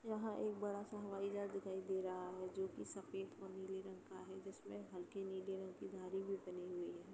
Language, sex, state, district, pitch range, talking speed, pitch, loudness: Hindi, female, Uttar Pradesh, Jalaun, 185-195 Hz, 225 wpm, 190 Hz, -48 LUFS